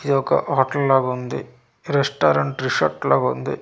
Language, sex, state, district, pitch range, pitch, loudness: Telugu, male, Andhra Pradesh, Manyam, 125-140 Hz, 135 Hz, -20 LUFS